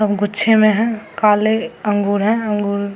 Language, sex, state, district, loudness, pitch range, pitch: Hindi, female, Bihar, Samastipur, -16 LUFS, 205-220 Hz, 210 Hz